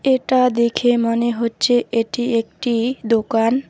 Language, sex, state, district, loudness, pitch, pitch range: Bengali, female, West Bengal, Alipurduar, -18 LUFS, 235 Hz, 230-245 Hz